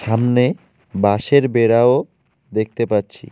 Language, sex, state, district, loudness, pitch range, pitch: Bengali, male, West Bengal, Alipurduar, -17 LUFS, 105-125 Hz, 115 Hz